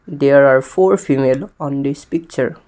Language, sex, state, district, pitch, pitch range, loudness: English, male, Assam, Kamrup Metropolitan, 140 Hz, 140-165 Hz, -15 LUFS